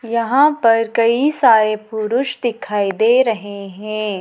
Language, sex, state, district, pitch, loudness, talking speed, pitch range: Hindi, female, Madhya Pradesh, Dhar, 225 Hz, -16 LUFS, 130 wpm, 215-245 Hz